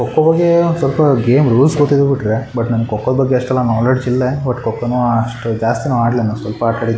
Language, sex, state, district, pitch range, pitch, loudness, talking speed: Kannada, male, Karnataka, Shimoga, 115-135 Hz, 125 Hz, -14 LUFS, 190 wpm